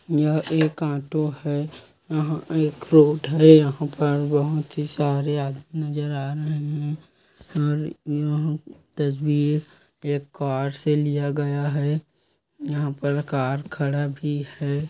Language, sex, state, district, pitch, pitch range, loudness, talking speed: Hindi, male, Chhattisgarh, Kabirdham, 150 Hz, 145-155 Hz, -23 LUFS, 135 wpm